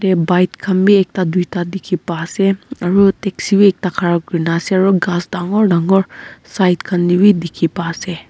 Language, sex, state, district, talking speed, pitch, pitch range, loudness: Nagamese, female, Nagaland, Kohima, 190 wpm, 180 Hz, 175-195 Hz, -15 LUFS